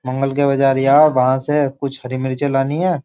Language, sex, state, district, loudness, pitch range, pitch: Hindi, male, Uttar Pradesh, Jyotiba Phule Nagar, -16 LUFS, 130-145 Hz, 135 Hz